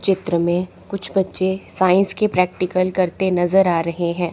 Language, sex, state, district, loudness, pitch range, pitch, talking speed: Hindi, female, Chandigarh, Chandigarh, -19 LUFS, 175-190 Hz, 185 Hz, 165 wpm